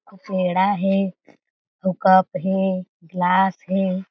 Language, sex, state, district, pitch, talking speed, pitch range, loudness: Chhattisgarhi, female, Chhattisgarh, Jashpur, 190 Hz, 115 wpm, 185-195 Hz, -20 LUFS